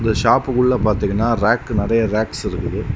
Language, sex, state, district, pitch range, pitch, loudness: Tamil, male, Tamil Nadu, Kanyakumari, 105-120 Hz, 115 Hz, -18 LUFS